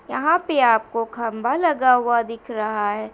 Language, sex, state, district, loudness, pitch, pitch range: Hindi, female, Uttar Pradesh, Muzaffarnagar, -20 LUFS, 230 Hz, 220-255 Hz